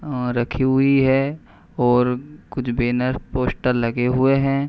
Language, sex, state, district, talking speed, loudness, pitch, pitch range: Hindi, male, Uttar Pradesh, Hamirpur, 140 wpm, -20 LUFS, 130 Hz, 125-135 Hz